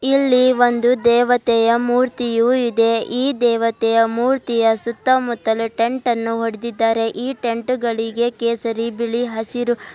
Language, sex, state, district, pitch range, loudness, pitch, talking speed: Kannada, female, Karnataka, Bidar, 230-245 Hz, -18 LUFS, 235 Hz, 95 wpm